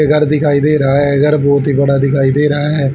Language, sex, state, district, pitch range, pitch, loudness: Hindi, male, Haryana, Jhajjar, 140-150 Hz, 145 Hz, -12 LUFS